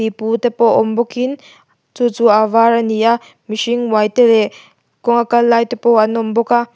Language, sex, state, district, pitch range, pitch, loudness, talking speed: Mizo, female, Mizoram, Aizawl, 220-240 Hz, 235 Hz, -14 LUFS, 230 wpm